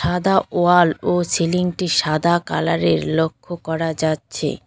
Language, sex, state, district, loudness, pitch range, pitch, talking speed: Bengali, female, West Bengal, Cooch Behar, -19 LUFS, 160-175 Hz, 170 Hz, 140 wpm